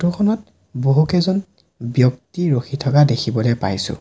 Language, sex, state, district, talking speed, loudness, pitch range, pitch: Assamese, male, Assam, Sonitpur, 120 wpm, -18 LUFS, 120-175 Hz, 135 Hz